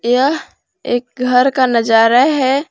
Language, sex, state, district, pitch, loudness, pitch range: Hindi, female, Jharkhand, Palamu, 255 Hz, -13 LUFS, 245-270 Hz